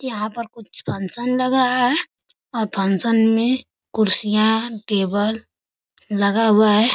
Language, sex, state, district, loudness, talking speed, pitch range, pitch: Hindi, female, Uttar Pradesh, Ghazipur, -18 LUFS, 130 wpm, 210-240 Hz, 225 Hz